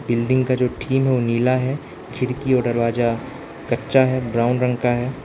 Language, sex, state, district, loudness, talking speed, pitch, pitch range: Hindi, male, Arunachal Pradesh, Lower Dibang Valley, -20 LUFS, 195 wpm, 125 Hz, 120-130 Hz